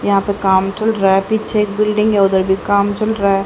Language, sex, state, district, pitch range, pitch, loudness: Hindi, female, Haryana, Charkhi Dadri, 195-215 Hz, 200 Hz, -15 LUFS